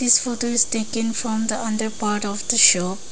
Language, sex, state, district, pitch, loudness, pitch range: English, female, Arunachal Pradesh, Lower Dibang Valley, 225 Hz, -19 LUFS, 215-235 Hz